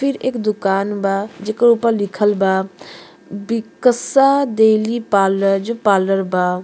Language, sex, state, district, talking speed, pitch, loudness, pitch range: Bhojpuri, female, Uttar Pradesh, Deoria, 125 wpm, 210 Hz, -16 LUFS, 195-230 Hz